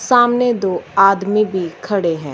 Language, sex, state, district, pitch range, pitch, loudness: Hindi, female, Punjab, Fazilka, 180-225 Hz, 195 Hz, -16 LUFS